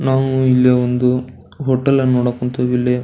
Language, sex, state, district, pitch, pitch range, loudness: Kannada, male, Karnataka, Belgaum, 125 Hz, 125-130 Hz, -16 LUFS